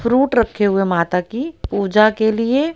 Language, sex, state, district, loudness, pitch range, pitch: Hindi, female, Haryana, Rohtak, -17 LUFS, 200-250 Hz, 220 Hz